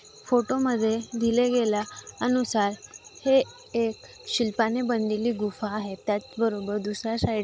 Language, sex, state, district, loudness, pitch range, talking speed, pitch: Marathi, female, Maharashtra, Aurangabad, -26 LUFS, 210-245 Hz, 130 wpm, 230 Hz